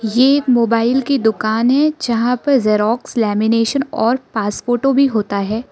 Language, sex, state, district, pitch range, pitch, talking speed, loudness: Hindi, female, Arunachal Pradesh, Lower Dibang Valley, 220-265 Hz, 235 Hz, 155 wpm, -16 LUFS